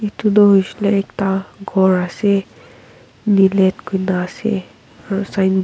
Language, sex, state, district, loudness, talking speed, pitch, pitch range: Nagamese, female, Nagaland, Kohima, -17 LUFS, 125 wpm, 195 Hz, 190-205 Hz